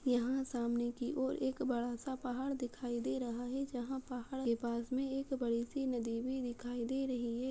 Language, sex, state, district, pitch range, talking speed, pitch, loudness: Hindi, female, Uttar Pradesh, Muzaffarnagar, 240-265 Hz, 200 wpm, 250 Hz, -38 LUFS